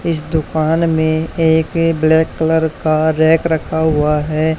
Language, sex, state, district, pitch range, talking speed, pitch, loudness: Hindi, male, Haryana, Charkhi Dadri, 155-160 Hz, 145 wpm, 160 Hz, -15 LUFS